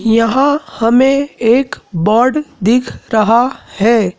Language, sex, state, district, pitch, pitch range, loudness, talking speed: Hindi, male, Madhya Pradesh, Dhar, 235 Hz, 225-270 Hz, -13 LUFS, 100 wpm